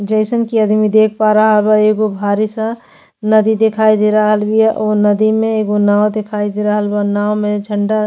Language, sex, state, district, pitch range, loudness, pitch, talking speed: Bhojpuri, female, Uttar Pradesh, Deoria, 210-215 Hz, -13 LUFS, 215 Hz, 210 wpm